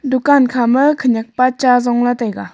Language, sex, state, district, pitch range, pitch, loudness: Wancho, female, Arunachal Pradesh, Longding, 240-265 Hz, 250 Hz, -14 LUFS